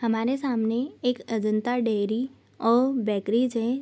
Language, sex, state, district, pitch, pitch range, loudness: Hindi, female, Bihar, East Champaran, 235 Hz, 225-250 Hz, -26 LUFS